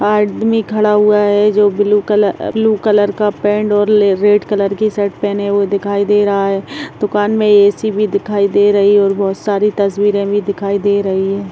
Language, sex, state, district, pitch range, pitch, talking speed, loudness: Hindi, female, Bihar, Muzaffarpur, 200-210 Hz, 205 Hz, 210 wpm, -13 LUFS